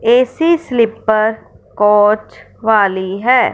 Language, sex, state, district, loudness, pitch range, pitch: Hindi, male, Punjab, Fazilka, -14 LUFS, 210-250 Hz, 220 Hz